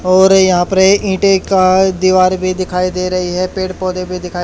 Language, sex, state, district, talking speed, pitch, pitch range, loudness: Hindi, male, Haryana, Charkhi Dadri, 200 wpm, 185 Hz, 185-190 Hz, -13 LUFS